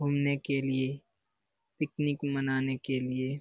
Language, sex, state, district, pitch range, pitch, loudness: Hindi, male, Bihar, Lakhisarai, 130-145 Hz, 135 Hz, -32 LUFS